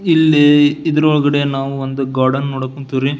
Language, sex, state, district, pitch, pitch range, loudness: Kannada, male, Karnataka, Belgaum, 140 Hz, 135-145 Hz, -14 LUFS